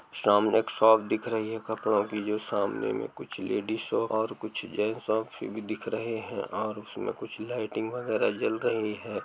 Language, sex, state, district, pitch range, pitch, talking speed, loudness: Hindi, male, Uttar Pradesh, Jalaun, 105-110 Hz, 110 Hz, 200 wpm, -29 LUFS